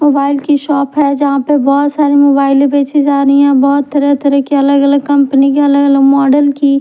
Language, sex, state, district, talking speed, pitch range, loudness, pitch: Hindi, female, Bihar, Patna, 195 wpm, 275-285 Hz, -10 LUFS, 280 Hz